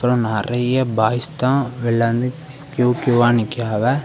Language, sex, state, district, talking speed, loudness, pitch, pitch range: Tamil, male, Tamil Nadu, Kanyakumari, 120 wpm, -19 LUFS, 125 Hz, 115-130 Hz